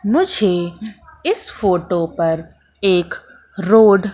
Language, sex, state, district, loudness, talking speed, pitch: Hindi, female, Madhya Pradesh, Katni, -17 LUFS, 100 wpm, 205 Hz